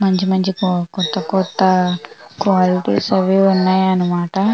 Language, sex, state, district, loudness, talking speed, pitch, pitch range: Telugu, female, Andhra Pradesh, Visakhapatnam, -16 LUFS, 130 wpm, 185 Hz, 180-190 Hz